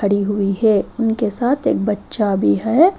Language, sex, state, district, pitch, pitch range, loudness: Hindi, female, Himachal Pradesh, Shimla, 210 Hz, 200-235 Hz, -17 LUFS